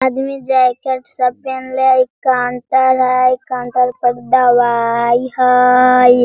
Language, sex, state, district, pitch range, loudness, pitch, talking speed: Hindi, female, Bihar, Sitamarhi, 245-260 Hz, -13 LUFS, 255 Hz, 115 wpm